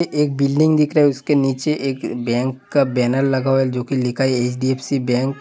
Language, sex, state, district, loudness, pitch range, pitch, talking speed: Hindi, male, Uttar Pradesh, Hamirpur, -18 LUFS, 130-140 Hz, 135 Hz, 210 wpm